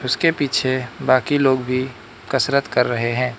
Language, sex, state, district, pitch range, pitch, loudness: Hindi, male, Arunachal Pradesh, Lower Dibang Valley, 125-135 Hz, 130 Hz, -19 LUFS